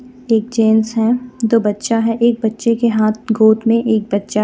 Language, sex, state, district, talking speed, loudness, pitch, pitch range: Hindi, female, Jharkhand, Deoghar, 205 wpm, -15 LUFS, 225 Hz, 220-235 Hz